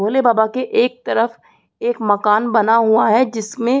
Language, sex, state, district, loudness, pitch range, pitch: Hindi, female, Bihar, Saran, -16 LUFS, 220-240 Hz, 230 Hz